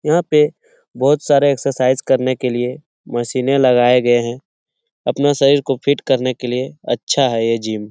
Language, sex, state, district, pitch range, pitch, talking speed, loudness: Hindi, male, Bihar, Lakhisarai, 125-140 Hz, 130 Hz, 180 wpm, -16 LUFS